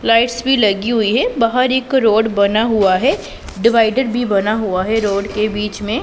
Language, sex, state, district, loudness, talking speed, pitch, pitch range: Hindi, female, Punjab, Pathankot, -15 LUFS, 200 wpm, 225 Hz, 210-240 Hz